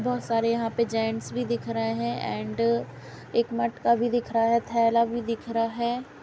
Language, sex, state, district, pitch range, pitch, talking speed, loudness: Hindi, female, Uttar Pradesh, Jalaun, 225-235 Hz, 230 Hz, 210 wpm, -26 LUFS